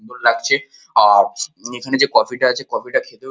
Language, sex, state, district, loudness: Bengali, male, West Bengal, Kolkata, -17 LUFS